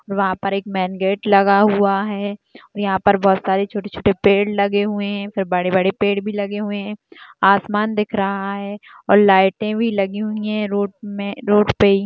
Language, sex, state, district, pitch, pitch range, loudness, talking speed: Hindi, female, Bihar, Purnia, 200 Hz, 195-205 Hz, -18 LUFS, 200 wpm